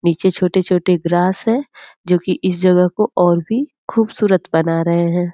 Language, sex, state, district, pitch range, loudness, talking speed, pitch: Hindi, female, Bihar, Purnia, 175-205 Hz, -16 LUFS, 180 wpm, 180 Hz